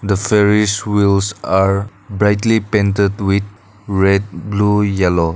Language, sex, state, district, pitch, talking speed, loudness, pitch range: English, male, Nagaland, Dimapur, 100 Hz, 80 wpm, -15 LUFS, 95-105 Hz